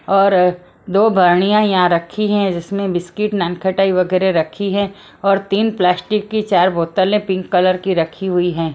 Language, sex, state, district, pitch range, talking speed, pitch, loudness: Hindi, female, Maharashtra, Mumbai Suburban, 180-200 Hz, 165 wpm, 190 Hz, -16 LUFS